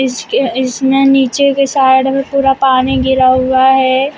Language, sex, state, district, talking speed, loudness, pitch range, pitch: Hindi, female, Uttar Pradesh, Shamli, 160 wpm, -11 LUFS, 260-275 Hz, 265 Hz